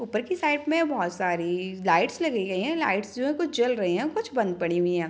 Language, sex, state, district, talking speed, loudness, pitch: Hindi, female, Bihar, Madhepura, 280 wpm, -26 LUFS, 215 Hz